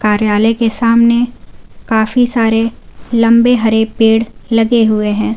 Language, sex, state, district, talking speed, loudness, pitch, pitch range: Hindi, female, Jharkhand, Garhwa, 125 wpm, -12 LUFS, 225 Hz, 220-235 Hz